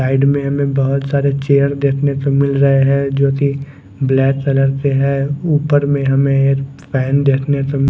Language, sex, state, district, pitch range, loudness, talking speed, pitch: Hindi, male, Chandigarh, Chandigarh, 135-140 Hz, -15 LUFS, 180 wpm, 140 Hz